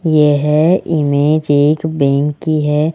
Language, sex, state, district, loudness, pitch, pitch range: Hindi, male, Rajasthan, Jaipur, -13 LUFS, 150 Hz, 145-155 Hz